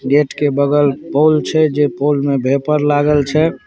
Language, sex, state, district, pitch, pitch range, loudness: Hindi, male, Bihar, Saharsa, 145 Hz, 140-150 Hz, -14 LUFS